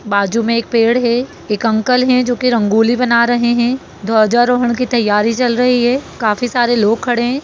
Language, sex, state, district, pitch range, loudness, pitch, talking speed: Hindi, female, Bihar, Saran, 225-245 Hz, -14 LUFS, 240 Hz, 210 wpm